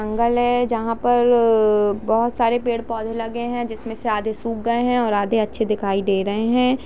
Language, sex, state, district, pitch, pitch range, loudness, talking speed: Hindi, female, Jharkhand, Jamtara, 230 Hz, 215-240 Hz, -20 LUFS, 175 wpm